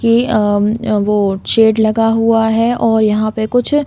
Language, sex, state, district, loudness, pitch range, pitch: Hindi, female, Chhattisgarh, Balrampur, -13 LUFS, 215-230 Hz, 220 Hz